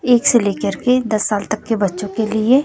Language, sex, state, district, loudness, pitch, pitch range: Hindi, female, Chhattisgarh, Raipur, -17 LUFS, 220 Hz, 210-245 Hz